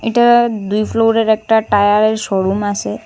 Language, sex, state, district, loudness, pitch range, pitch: Bengali, female, Assam, Hailakandi, -14 LUFS, 205-225 Hz, 215 Hz